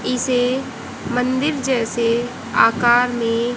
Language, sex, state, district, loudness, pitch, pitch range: Hindi, female, Haryana, Jhajjar, -18 LUFS, 245 Hz, 235-255 Hz